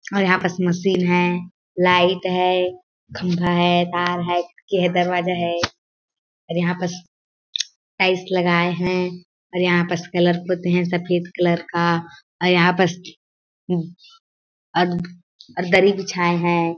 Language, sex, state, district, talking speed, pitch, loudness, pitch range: Hindi, female, Chhattisgarh, Sarguja, 120 wpm, 180 Hz, -20 LUFS, 175-180 Hz